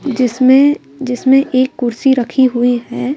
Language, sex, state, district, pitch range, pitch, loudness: Hindi, female, Madhya Pradesh, Bhopal, 245-270 Hz, 255 Hz, -13 LUFS